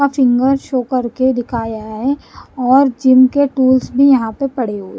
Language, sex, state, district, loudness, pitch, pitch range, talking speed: Hindi, female, Punjab, Kapurthala, -14 LUFS, 260 Hz, 245-270 Hz, 190 wpm